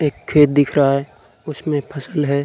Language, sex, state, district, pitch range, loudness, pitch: Hindi, male, Uttar Pradesh, Muzaffarnagar, 140-150 Hz, -17 LUFS, 145 Hz